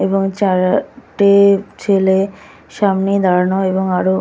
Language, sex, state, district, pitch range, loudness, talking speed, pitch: Bengali, female, West Bengal, Kolkata, 190-200 Hz, -15 LUFS, 100 wpm, 195 Hz